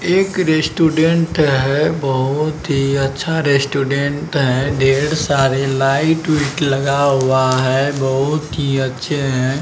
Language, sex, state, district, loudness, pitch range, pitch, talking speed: Hindi, male, Bihar, Araria, -16 LUFS, 135-155 Hz, 140 Hz, 110 wpm